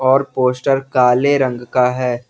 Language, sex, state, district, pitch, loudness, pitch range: Hindi, male, Jharkhand, Garhwa, 130 Hz, -16 LUFS, 125-135 Hz